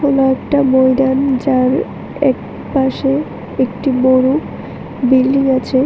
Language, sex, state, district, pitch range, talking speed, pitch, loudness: Bengali, female, Tripura, West Tripura, 260-275 Hz, 100 wpm, 265 Hz, -14 LUFS